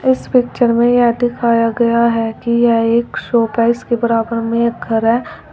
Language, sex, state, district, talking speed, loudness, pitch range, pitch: Hindi, female, Uttar Pradesh, Shamli, 175 wpm, -15 LUFS, 230-240 Hz, 235 Hz